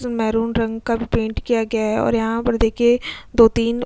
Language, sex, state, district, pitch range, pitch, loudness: Hindi, female, Uttar Pradesh, Jyotiba Phule Nagar, 225-235 Hz, 230 Hz, -19 LUFS